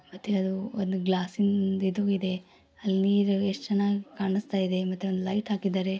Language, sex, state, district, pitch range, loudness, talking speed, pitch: Kannada, female, Karnataka, Gulbarga, 190-200 Hz, -28 LUFS, 150 wpm, 195 Hz